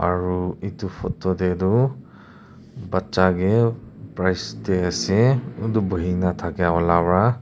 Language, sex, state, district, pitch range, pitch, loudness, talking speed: Nagamese, male, Nagaland, Kohima, 90-110 Hz, 95 Hz, -21 LUFS, 130 wpm